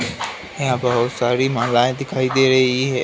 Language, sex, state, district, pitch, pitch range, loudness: Hindi, male, Uttar Pradesh, Ghazipur, 130 Hz, 125-130 Hz, -18 LUFS